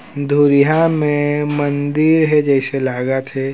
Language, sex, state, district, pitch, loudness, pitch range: Chhattisgarhi, male, Chhattisgarh, Raigarh, 145 Hz, -15 LUFS, 135-150 Hz